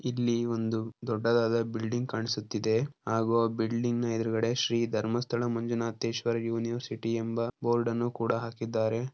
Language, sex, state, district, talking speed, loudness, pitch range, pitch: Kannada, male, Karnataka, Dharwad, 110 wpm, -30 LUFS, 115-120 Hz, 115 Hz